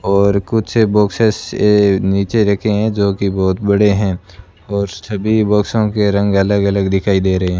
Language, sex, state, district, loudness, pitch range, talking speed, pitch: Hindi, male, Rajasthan, Bikaner, -15 LUFS, 95-105 Hz, 180 wpm, 100 Hz